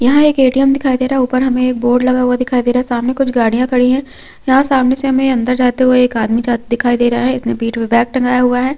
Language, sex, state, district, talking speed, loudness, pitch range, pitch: Hindi, female, Chhattisgarh, Korba, 295 wpm, -13 LUFS, 240-260 Hz, 250 Hz